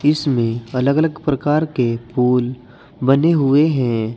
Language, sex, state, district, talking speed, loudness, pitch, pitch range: Hindi, male, Uttar Pradesh, Saharanpur, 130 wpm, -17 LUFS, 135 Hz, 125-150 Hz